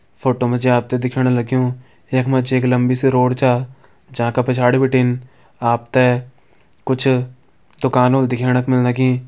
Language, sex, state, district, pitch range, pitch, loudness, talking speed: Hindi, male, Uttarakhand, Uttarkashi, 125-130 Hz, 125 Hz, -17 LUFS, 170 wpm